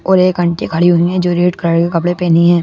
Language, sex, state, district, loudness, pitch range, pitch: Hindi, male, Madhya Pradesh, Bhopal, -13 LUFS, 170-180 Hz, 175 Hz